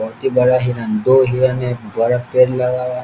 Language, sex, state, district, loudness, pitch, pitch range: Hindi, male, Bihar, East Champaran, -16 LUFS, 125 Hz, 120-125 Hz